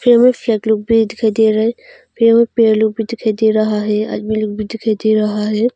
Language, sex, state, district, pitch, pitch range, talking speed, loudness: Hindi, female, Arunachal Pradesh, Longding, 220 Hz, 215-230 Hz, 240 wpm, -15 LUFS